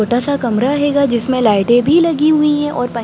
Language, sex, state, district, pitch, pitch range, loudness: Hindi, female, Bihar, Sitamarhi, 265 Hz, 240-295 Hz, -14 LUFS